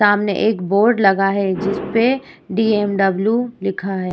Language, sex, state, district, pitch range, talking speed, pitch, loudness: Hindi, female, Uttar Pradesh, Muzaffarnagar, 195-220 Hz, 130 wpm, 200 Hz, -17 LUFS